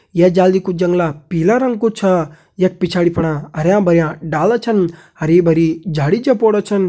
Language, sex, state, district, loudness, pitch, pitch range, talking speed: Hindi, male, Uttarakhand, Tehri Garhwal, -15 LUFS, 180 Hz, 165-195 Hz, 175 wpm